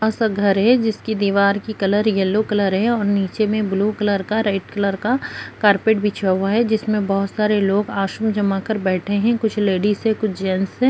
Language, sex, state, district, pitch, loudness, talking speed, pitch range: Hindi, female, Bihar, Madhepura, 205 Hz, -19 LUFS, 215 wpm, 195-220 Hz